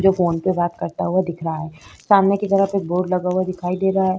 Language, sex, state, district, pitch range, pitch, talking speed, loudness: Hindi, female, Uttar Pradesh, Jyotiba Phule Nagar, 175-195 Hz, 185 Hz, 285 wpm, -20 LUFS